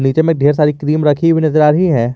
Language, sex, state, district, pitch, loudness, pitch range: Hindi, male, Jharkhand, Garhwa, 150 Hz, -12 LUFS, 145-160 Hz